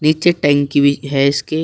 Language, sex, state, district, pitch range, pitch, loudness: Hindi, male, Uttar Pradesh, Shamli, 140-155 Hz, 145 Hz, -15 LUFS